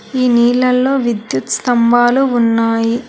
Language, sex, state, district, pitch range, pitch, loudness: Telugu, female, Telangana, Hyderabad, 230-250 Hz, 240 Hz, -13 LUFS